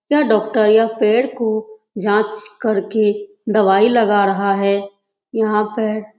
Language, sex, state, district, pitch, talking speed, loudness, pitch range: Hindi, female, Uttar Pradesh, Etah, 215 Hz, 135 wpm, -17 LUFS, 205-220 Hz